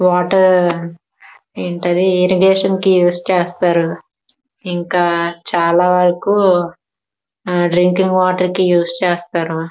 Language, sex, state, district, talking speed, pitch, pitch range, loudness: Telugu, female, Andhra Pradesh, Srikakulam, 80 wpm, 180 Hz, 170-185 Hz, -14 LUFS